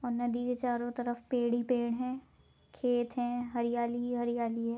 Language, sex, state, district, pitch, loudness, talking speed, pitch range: Hindi, female, Maharashtra, Aurangabad, 240 Hz, -33 LUFS, 190 wpm, 240-245 Hz